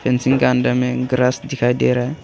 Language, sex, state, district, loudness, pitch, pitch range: Hindi, male, Arunachal Pradesh, Longding, -17 LUFS, 125 Hz, 125-130 Hz